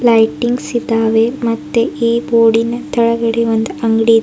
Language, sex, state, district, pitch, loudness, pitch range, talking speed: Kannada, female, Karnataka, Bidar, 230 Hz, -14 LUFS, 225-240 Hz, 140 wpm